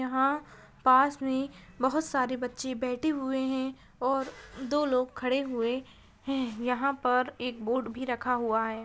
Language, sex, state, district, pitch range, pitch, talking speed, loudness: Hindi, female, Bihar, Purnia, 250-270 Hz, 260 Hz, 155 wpm, -30 LUFS